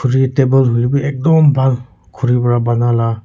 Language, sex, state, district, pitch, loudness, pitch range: Nagamese, male, Nagaland, Kohima, 125 Hz, -14 LUFS, 120-135 Hz